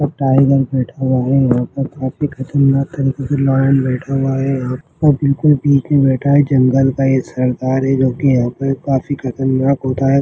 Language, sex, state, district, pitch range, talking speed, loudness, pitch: Hindi, male, Chhattisgarh, Jashpur, 130-140 Hz, 195 wpm, -15 LUFS, 135 Hz